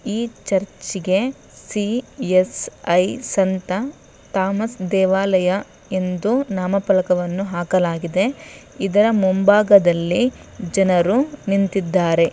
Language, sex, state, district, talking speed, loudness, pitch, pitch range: Kannada, female, Karnataka, Shimoga, 65 wpm, -19 LUFS, 190 Hz, 185-210 Hz